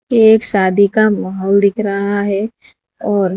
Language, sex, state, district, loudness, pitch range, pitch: Hindi, female, Gujarat, Valsad, -13 LUFS, 200-215 Hz, 200 Hz